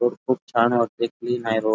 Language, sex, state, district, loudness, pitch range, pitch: Marathi, male, Karnataka, Belgaum, -23 LUFS, 115-120 Hz, 120 Hz